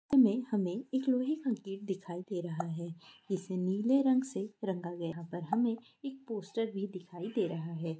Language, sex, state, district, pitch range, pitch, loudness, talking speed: Hindi, female, Maharashtra, Aurangabad, 175-240 Hz, 195 Hz, -35 LUFS, 195 wpm